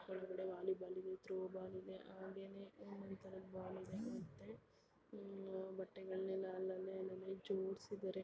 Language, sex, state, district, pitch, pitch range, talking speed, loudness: Kannada, female, Karnataka, Shimoga, 190 Hz, 185-195 Hz, 125 wpm, -49 LUFS